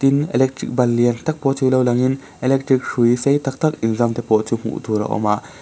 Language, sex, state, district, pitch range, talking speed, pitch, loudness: Mizo, male, Mizoram, Aizawl, 115-135 Hz, 245 wpm, 125 Hz, -18 LUFS